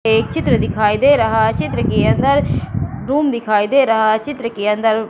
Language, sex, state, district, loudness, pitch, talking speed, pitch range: Hindi, female, Madhya Pradesh, Katni, -16 LUFS, 225 Hz, 200 wpm, 215-255 Hz